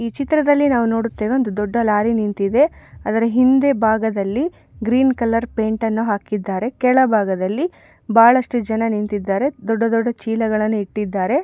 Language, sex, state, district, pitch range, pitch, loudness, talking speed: Kannada, female, Karnataka, Mysore, 215-255 Hz, 230 Hz, -18 LUFS, 125 wpm